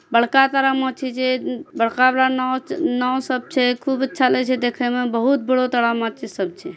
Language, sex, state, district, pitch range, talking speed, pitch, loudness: Angika, female, Bihar, Bhagalpur, 245-265 Hz, 185 wpm, 255 Hz, -19 LUFS